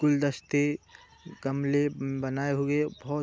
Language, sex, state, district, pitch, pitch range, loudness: Hindi, male, Uttar Pradesh, Budaun, 145 Hz, 135-145 Hz, -29 LUFS